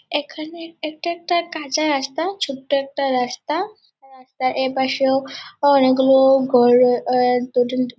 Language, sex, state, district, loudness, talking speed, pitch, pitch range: Bengali, female, West Bengal, Purulia, -19 LUFS, 105 wpm, 270 Hz, 255-310 Hz